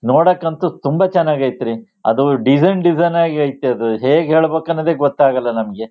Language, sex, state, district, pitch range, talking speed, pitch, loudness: Kannada, male, Karnataka, Shimoga, 130-170 Hz, 175 wpm, 145 Hz, -15 LUFS